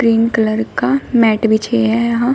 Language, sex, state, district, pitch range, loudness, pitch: Hindi, female, Uttar Pradesh, Shamli, 220-235 Hz, -14 LUFS, 230 Hz